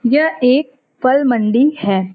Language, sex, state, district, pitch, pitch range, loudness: Hindi, female, Uttar Pradesh, Varanasi, 255 Hz, 230-280 Hz, -14 LUFS